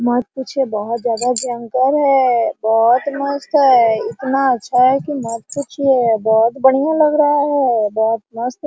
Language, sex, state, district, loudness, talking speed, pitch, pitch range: Hindi, female, Bihar, Araria, -16 LUFS, 160 wpm, 255 Hz, 230-280 Hz